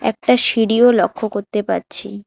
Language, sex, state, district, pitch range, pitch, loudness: Bengali, female, West Bengal, Alipurduar, 205-225 Hz, 210 Hz, -16 LUFS